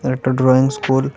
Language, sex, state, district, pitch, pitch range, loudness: Bengali, male, Tripura, West Tripura, 130 Hz, 130-135 Hz, -16 LUFS